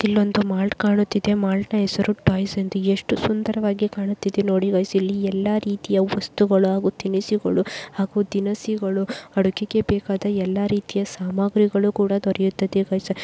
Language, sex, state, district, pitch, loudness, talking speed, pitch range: Kannada, female, Karnataka, Mysore, 200 Hz, -22 LUFS, 130 wpm, 195-205 Hz